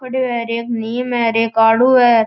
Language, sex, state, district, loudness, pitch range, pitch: Marwari, male, Rajasthan, Churu, -15 LUFS, 230-245 Hz, 235 Hz